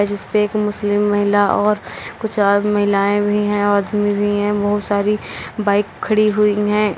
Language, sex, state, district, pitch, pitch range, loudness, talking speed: Hindi, female, Uttar Pradesh, Lalitpur, 205 Hz, 205-210 Hz, -17 LUFS, 165 wpm